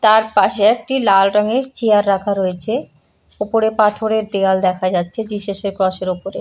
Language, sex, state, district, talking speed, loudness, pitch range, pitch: Bengali, female, West Bengal, Purulia, 180 wpm, -16 LUFS, 195-220 Hz, 205 Hz